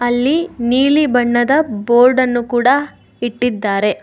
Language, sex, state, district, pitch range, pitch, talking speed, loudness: Kannada, female, Karnataka, Bangalore, 240-265 Hz, 245 Hz, 105 wpm, -14 LUFS